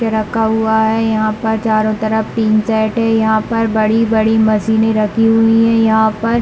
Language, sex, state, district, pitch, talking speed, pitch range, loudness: Hindi, male, Chhattisgarh, Bilaspur, 220 Hz, 175 wpm, 220-225 Hz, -14 LUFS